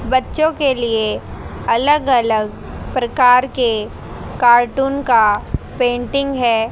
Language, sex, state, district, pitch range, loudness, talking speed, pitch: Hindi, female, Haryana, Jhajjar, 230-270 Hz, -16 LUFS, 100 wpm, 245 Hz